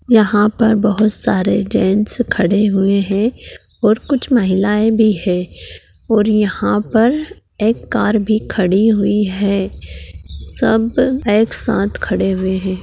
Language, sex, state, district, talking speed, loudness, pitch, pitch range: Hindi, female, Bihar, Jahanabad, 130 wpm, -15 LUFS, 210 Hz, 190-225 Hz